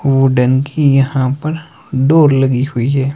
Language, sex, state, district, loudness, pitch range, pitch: Hindi, male, Himachal Pradesh, Shimla, -13 LUFS, 130-145 Hz, 135 Hz